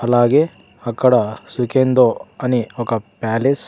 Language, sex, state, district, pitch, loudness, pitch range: Telugu, male, Andhra Pradesh, Sri Satya Sai, 120 Hz, -17 LUFS, 115-130 Hz